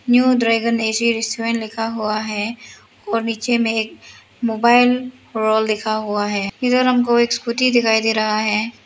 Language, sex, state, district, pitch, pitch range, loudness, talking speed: Hindi, female, Arunachal Pradesh, Lower Dibang Valley, 230 Hz, 220-235 Hz, -18 LUFS, 160 wpm